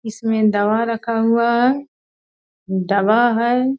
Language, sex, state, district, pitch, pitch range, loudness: Hindi, female, Bihar, Purnia, 230 Hz, 215-240 Hz, -17 LUFS